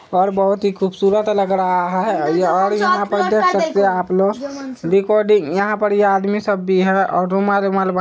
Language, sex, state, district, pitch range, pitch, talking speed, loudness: Hindi, male, Bihar, Araria, 190-205 Hz, 195 Hz, 195 wpm, -17 LUFS